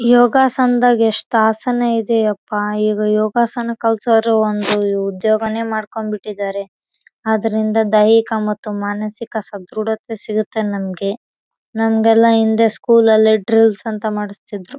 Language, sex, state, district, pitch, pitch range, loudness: Kannada, female, Karnataka, Raichur, 220 Hz, 210-230 Hz, -16 LUFS